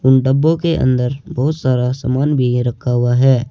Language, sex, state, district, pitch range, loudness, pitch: Hindi, male, Uttar Pradesh, Saharanpur, 125-140 Hz, -15 LUFS, 130 Hz